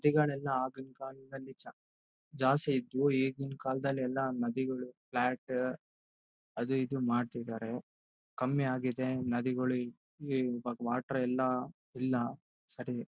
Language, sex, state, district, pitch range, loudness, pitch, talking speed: Kannada, male, Karnataka, Bellary, 120-135 Hz, -34 LUFS, 130 Hz, 115 wpm